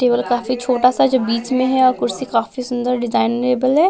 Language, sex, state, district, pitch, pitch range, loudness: Hindi, male, Bihar, West Champaran, 250 Hz, 245-260 Hz, -17 LUFS